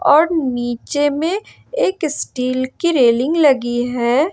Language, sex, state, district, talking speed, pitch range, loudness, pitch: Hindi, female, Jharkhand, Ranchi, 125 wpm, 245-320 Hz, -17 LUFS, 285 Hz